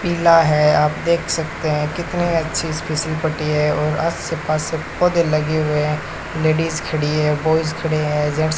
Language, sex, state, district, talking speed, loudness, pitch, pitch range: Hindi, male, Rajasthan, Bikaner, 175 wpm, -19 LUFS, 155 Hz, 150-165 Hz